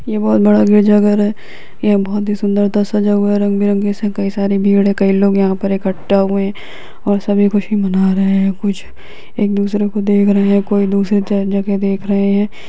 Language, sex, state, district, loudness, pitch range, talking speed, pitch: Hindi, female, Bihar, Lakhisarai, -14 LUFS, 195-205 Hz, 215 wpm, 200 Hz